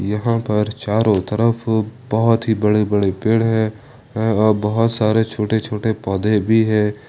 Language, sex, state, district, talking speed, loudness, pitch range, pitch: Hindi, male, Jharkhand, Ranchi, 150 wpm, -18 LUFS, 105-115 Hz, 110 Hz